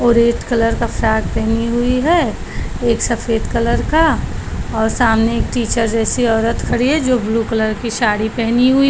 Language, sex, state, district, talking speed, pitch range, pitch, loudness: Hindi, female, Maharashtra, Chandrapur, 180 wpm, 225-245 Hz, 235 Hz, -16 LUFS